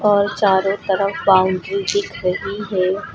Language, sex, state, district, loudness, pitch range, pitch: Hindi, female, Uttar Pradesh, Lucknow, -18 LUFS, 190-200 Hz, 195 Hz